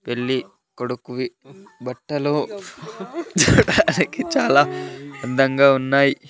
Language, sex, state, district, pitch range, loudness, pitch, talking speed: Telugu, male, Andhra Pradesh, Sri Satya Sai, 125-150 Hz, -19 LUFS, 135 Hz, 65 wpm